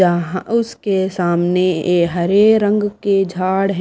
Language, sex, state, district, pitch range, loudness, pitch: Hindi, female, Delhi, New Delhi, 180-205 Hz, -16 LUFS, 185 Hz